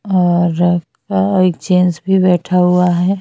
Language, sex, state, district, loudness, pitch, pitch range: Hindi, female, Chhattisgarh, Bastar, -14 LUFS, 180 Hz, 175-185 Hz